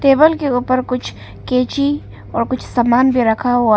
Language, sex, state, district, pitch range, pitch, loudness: Hindi, female, Arunachal Pradesh, Papum Pare, 240-275 Hz, 250 Hz, -16 LUFS